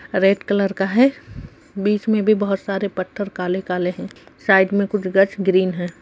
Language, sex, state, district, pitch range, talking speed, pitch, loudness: Hindi, female, Bihar, Jamui, 190-205 Hz, 180 wpm, 195 Hz, -19 LUFS